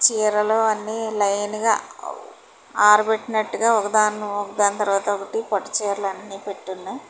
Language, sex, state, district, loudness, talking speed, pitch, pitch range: Telugu, female, Telangana, Hyderabad, -21 LUFS, 120 wpm, 210 Hz, 200-220 Hz